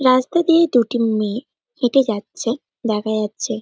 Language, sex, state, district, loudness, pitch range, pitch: Bengali, male, West Bengal, North 24 Parganas, -19 LUFS, 215-270 Hz, 235 Hz